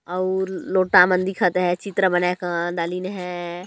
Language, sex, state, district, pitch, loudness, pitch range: Chhattisgarhi, male, Chhattisgarh, Jashpur, 180 Hz, -21 LUFS, 175-185 Hz